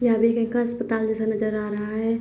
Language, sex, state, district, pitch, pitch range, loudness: Hindi, female, Uttar Pradesh, Jyotiba Phule Nagar, 225 Hz, 220-230 Hz, -24 LUFS